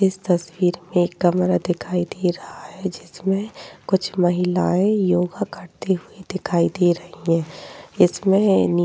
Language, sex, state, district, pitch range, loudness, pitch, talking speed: Hindi, female, Uttar Pradesh, Jyotiba Phule Nagar, 175-190 Hz, -21 LUFS, 180 Hz, 140 wpm